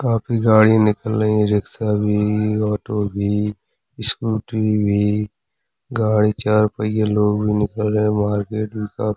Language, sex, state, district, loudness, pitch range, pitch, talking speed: Hindi, male, Uttar Pradesh, Hamirpur, -19 LUFS, 105-110 Hz, 105 Hz, 150 wpm